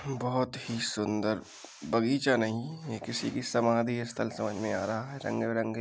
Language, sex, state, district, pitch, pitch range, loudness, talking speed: Hindi, male, Uttar Pradesh, Jalaun, 115 Hz, 110-125 Hz, -31 LUFS, 175 wpm